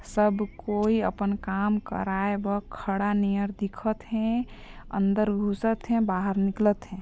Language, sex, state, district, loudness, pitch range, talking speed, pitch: Chhattisgarhi, female, Chhattisgarh, Sarguja, -27 LUFS, 200-215 Hz, 135 wpm, 205 Hz